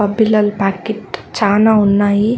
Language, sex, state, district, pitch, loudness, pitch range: Telugu, female, Andhra Pradesh, Chittoor, 205 Hz, -14 LUFS, 200-215 Hz